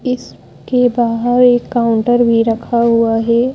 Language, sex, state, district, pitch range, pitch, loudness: Hindi, female, Madhya Pradesh, Bhopal, 230-245 Hz, 235 Hz, -13 LUFS